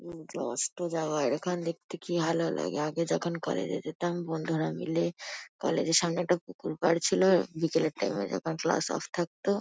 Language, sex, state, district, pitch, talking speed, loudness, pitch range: Bengali, female, West Bengal, Kolkata, 165 Hz, 185 wpm, -30 LUFS, 155-175 Hz